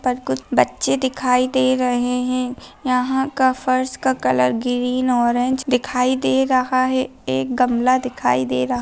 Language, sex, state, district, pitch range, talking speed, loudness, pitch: Hindi, female, Bihar, Darbhanga, 245-260 Hz, 165 wpm, -19 LUFS, 250 Hz